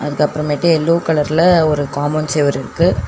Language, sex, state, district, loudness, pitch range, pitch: Tamil, female, Tamil Nadu, Chennai, -15 LUFS, 145-160 Hz, 150 Hz